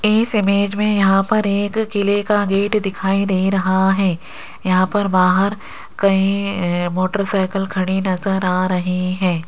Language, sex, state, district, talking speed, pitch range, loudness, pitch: Hindi, female, Rajasthan, Jaipur, 150 wpm, 185-200 Hz, -17 LUFS, 195 Hz